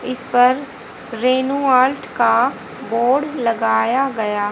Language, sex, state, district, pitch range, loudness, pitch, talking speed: Hindi, female, Haryana, Charkhi Dadri, 230-265 Hz, -17 LUFS, 255 Hz, 105 wpm